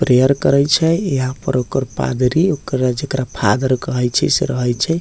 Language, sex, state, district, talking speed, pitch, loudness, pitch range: Bajjika, male, Bihar, Vaishali, 180 wpm, 130 Hz, -17 LUFS, 125-145 Hz